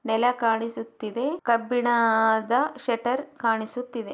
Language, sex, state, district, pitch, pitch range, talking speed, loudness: Kannada, female, Karnataka, Chamarajanagar, 235 Hz, 225-245 Hz, 100 wpm, -25 LUFS